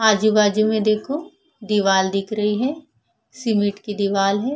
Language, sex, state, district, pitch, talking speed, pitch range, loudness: Hindi, female, Bihar, Vaishali, 215 Hz, 145 wpm, 205-230 Hz, -20 LUFS